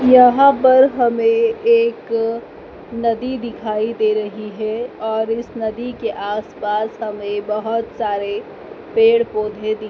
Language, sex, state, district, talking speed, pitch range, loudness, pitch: Hindi, female, Madhya Pradesh, Dhar, 120 wpm, 215-260 Hz, -18 LUFS, 230 Hz